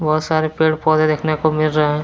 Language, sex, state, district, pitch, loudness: Hindi, male, Jharkhand, Deoghar, 155 Hz, -17 LUFS